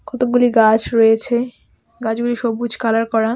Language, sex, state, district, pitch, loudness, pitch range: Bengali, female, West Bengal, Alipurduar, 230 Hz, -16 LUFS, 225-245 Hz